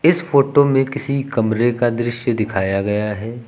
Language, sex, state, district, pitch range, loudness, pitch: Hindi, male, Uttar Pradesh, Lucknow, 110-140 Hz, -18 LUFS, 120 Hz